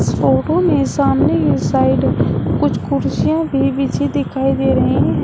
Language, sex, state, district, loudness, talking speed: Hindi, female, Uttar Pradesh, Shamli, -16 LUFS, 150 wpm